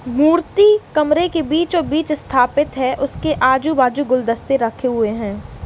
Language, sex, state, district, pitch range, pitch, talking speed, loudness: Hindi, female, Uttar Pradesh, Varanasi, 255-315 Hz, 280 Hz, 125 wpm, -17 LUFS